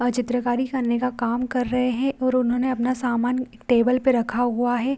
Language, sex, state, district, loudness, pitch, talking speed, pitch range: Hindi, female, Bihar, Vaishali, -22 LUFS, 245 Hz, 205 wpm, 240-255 Hz